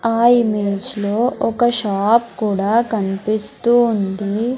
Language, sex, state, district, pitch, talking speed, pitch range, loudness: Telugu, male, Andhra Pradesh, Sri Satya Sai, 220 Hz, 105 wpm, 200-235 Hz, -16 LUFS